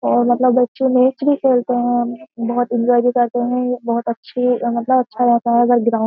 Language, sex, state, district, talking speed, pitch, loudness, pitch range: Hindi, female, Uttar Pradesh, Jyotiba Phule Nagar, 180 wpm, 245 Hz, -17 LUFS, 235-250 Hz